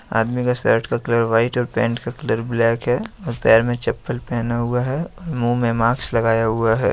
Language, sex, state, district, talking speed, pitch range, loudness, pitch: Hindi, male, Jharkhand, Ranchi, 215 wpm, 115-125 Hz, -20 LUFS, 120 Hz